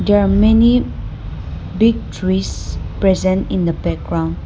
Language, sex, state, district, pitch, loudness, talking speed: English, female, Nagaland, Dimapur, 185 Hz, -16 LUFS, 120 wpm